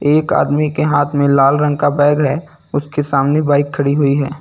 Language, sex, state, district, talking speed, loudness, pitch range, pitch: Hindi, male, Uttar Pradesh, Lucknow, 220 wpm, -15 LUFS, 140-150 Hz, 145 Hz